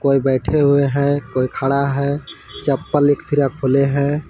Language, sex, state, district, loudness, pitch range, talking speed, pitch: Hindi, male, Jharkhand, Palamu, -18 LUFS, 135-145 Hz, 165 wpm, 140 Hz